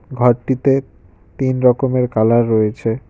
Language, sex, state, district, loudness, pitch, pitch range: Bengali, male, West Bengal, Cooch Behar, -16 LUFS, 120 Hz, 110-130 Hz